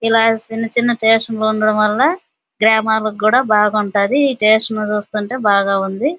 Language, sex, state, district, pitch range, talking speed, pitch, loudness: Telugu, female, Andhra Pradesh, Anantapur, 210-225 Hz, 125 wpm, 220 Hz, -15 LUFS